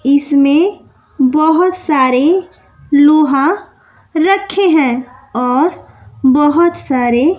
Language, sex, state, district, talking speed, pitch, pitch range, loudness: Hindi, female, Bihar, West Champaran, 75 wpm, 295 Hz, 265-345 Hz, -12 LUFS